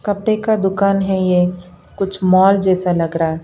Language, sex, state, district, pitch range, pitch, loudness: Hindi, female, Bihar, Patna, 180-195 Hz, 190 Hz, -16 LUFS